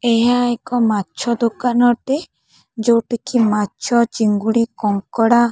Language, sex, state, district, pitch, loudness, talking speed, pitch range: Odia, female, Odisha, Khordha, 235 Hz, -17 LUFS, 110 wpm, 220-240 Hz